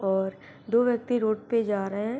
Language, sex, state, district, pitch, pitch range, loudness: Hindi, female, Bihar, Begusarai, 215 Hz, 195-235 Hz, -27 LUFS